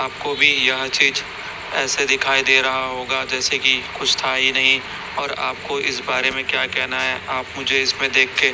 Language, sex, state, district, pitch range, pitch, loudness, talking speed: Hindi, male, Chhattisgarh, Raipur, 130-135 Hz, 130 Hz, -18 LUFS, 195 wpm